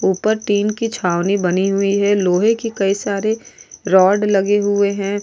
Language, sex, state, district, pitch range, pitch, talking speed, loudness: Hindi, female, Goa, North and South Goa, 195-210 Hz, 200 Hz, 170 wpm, -17 LUFS